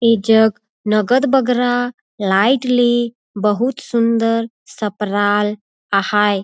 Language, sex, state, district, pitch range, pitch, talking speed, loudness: Surgujia, female, Chhattisgarh, Sarguja, 210-245 Hz, 230 Hz, 95 wpm, -16 LUFS